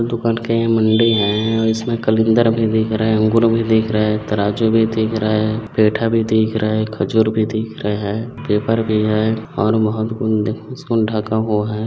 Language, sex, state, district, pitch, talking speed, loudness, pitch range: Hindi, male, Chhattisgarh, Bilaspur, 110 Hz, 215 wpm, -17 LUFS, 110-115 Hz